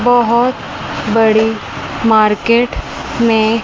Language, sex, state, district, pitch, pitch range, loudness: Hindi, female, Chandigarh, Chandigarh, 225 Hz, 220-235 Hz, -14 LUFS